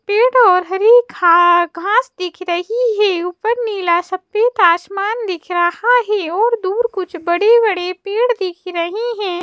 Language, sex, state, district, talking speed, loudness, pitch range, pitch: Hindi, female, Madhya Pradesh, Bhopal, 145 wpm, -15 LUFS, 355-460 Hz, 390 Hz